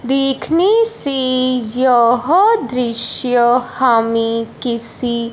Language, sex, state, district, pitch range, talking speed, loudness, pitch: Hindi, male, Punjab, Fazilka, 235-270 Hz, 70 wpm, -13 LUFS, 250 Hz